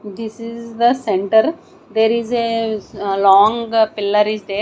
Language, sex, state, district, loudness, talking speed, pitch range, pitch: English, female, Odisha, Nuapada, -16 LUFS, 145 wpm, 210-235 Hz, 220 Hz